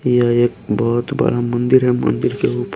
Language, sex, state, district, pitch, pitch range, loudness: Hindi, male, Haryana, Rohtak, 120 Hz, 120-125 Hz, -17 LUFS